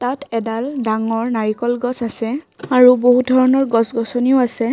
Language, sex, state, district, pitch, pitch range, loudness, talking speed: Assamese, female, Assam, Kamrup Metropolitan, 245 Hz, 230-255 Hz, -16 LUFS, 150 wpm